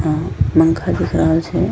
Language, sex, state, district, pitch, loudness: Angika, female, Bihar, Bhagalpur, 155 Hz, -16 LUFS